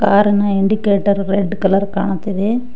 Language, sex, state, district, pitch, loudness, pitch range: Kannada, female, Karnataka, Koppal, 200 Hz, -16 LUFS, 195-205 Hz